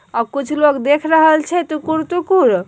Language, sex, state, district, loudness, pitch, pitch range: Hindi, female, Bihar, Begusarai, -15 LUFS, 310 Hz, 290-320 Hz